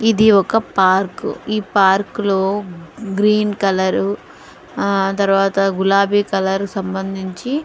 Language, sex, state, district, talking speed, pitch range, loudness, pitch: Telugu, female, Andhra Pradesh, Guntur, 95 wpm, 190-205 Hz, -17 LUFS, 195 Hz